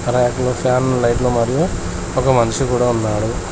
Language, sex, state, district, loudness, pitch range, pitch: Telugu, male, Telangana, Komaram Bheem, -17 LUFS, 115-125 Hz, 120 Hz